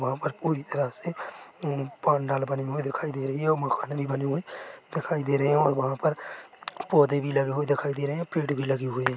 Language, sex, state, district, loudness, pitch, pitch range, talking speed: Hindi, male, Chhattisgarh, Korba, -27 LUFS, 140 Hz, 135-150 Hz, 250 wpm